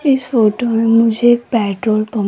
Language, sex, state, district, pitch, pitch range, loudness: Hindi, female, Rajasthan, Jaipur, 230 Hz, 215-240 Hz, -14 LUFS